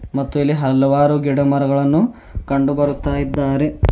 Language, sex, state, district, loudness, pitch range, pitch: Kannada, male, Karnataka, Bidar, -17 LUFS, 140-145 Hz, 140 Hz